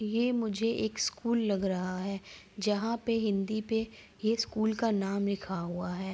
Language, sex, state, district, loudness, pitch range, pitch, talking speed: Hindi, female, Bihar, Araria, -32 LUFS, 195-225 Hz, 215 Hz, 175 wpm